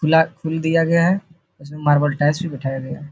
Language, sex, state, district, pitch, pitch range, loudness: Hindi, male, Bihar, Supaul, 160 Hz, 145-165 Hz, -19 LUFS